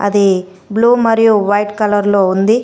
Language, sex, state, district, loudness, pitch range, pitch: Telugu, female, Telangana, Komaram Bheem, -13 LUFS, 200-225 Hz, 205 Hz